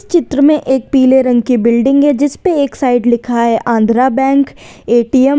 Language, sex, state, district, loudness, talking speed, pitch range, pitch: Hindi, female, Uttar Pradesh, Lalitpur, -12 LUFS, 200 wpm, 240-280 Hz, 260 Hz